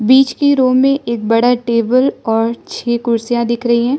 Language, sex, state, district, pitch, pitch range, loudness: Hindi, female, Arunachal Pradesh, Lower Dibang Valley, 240 Hz, 235-260 Hz, -14 LUFS